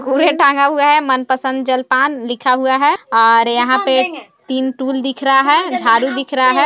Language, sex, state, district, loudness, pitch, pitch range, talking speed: Hindi, female, Bihar, Jamui, -14 LUFS, 265 Hz, 255-280 Hz, 205 wpm